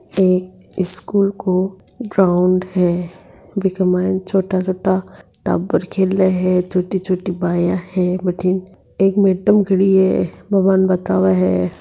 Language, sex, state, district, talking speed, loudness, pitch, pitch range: Marwari, female, Rajasthan, Nagaur, 115 wpm, -17 LUFS, 185 Hz, 180-190 Hz